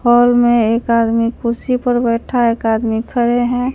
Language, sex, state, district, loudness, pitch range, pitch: Hindi, female, Bihar, Katihar, -15 LUFS, 230-245 Hz, 240 Hz